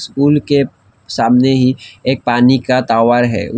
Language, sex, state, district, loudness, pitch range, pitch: Hindi, male, Assam, Kamrup Metropolitan, -13 LUFS, 120-135 Hz, 130 Hz